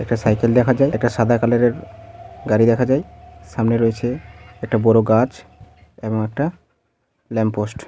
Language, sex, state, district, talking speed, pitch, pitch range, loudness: Bengali, male, West Bengal, Malda, 160 wpm, 115 Hz, 105-120 Hz, -18 LUFS